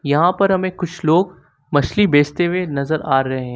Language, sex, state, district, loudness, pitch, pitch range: Hindi, male, Uttar Pradesh, Lucknow, -17 LUFS, 155 Hz, 140-180 Hz